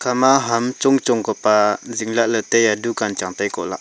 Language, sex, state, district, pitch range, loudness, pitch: Wancho, male, Arunachal Pradesh, Longding, 110-125 Hz, -18 LUFS, 115 Hz